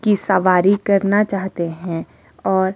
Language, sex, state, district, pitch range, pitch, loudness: Hindi, female, Himachal Pradesh, Shimla, 180-200 Hz, 190 Hz, -18 LUFS